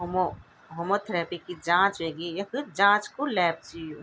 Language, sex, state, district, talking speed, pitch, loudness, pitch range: Garhwali, female, Uttarakhand, Tehri Garhwal, 165 wpm, 175 Hz, -27 LUFS, 165-200 Hz